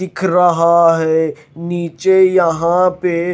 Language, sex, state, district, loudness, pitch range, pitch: Hindi, male, Himachal Pradesh, Shimla, -14 LUFS, 165-180 Hz, 170 Hz